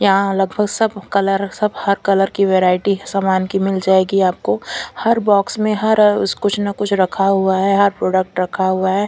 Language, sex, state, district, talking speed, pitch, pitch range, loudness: Hindi, female, Bihar, Katihar, 200 wpm, 195 Hz, 190-205 Hz, -16 LUFS